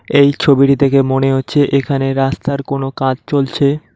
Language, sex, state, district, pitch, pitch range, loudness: Bengali, male, West Bengal, Cooch Behar, 140 Hz, 135-140 Hz, -14 LUFS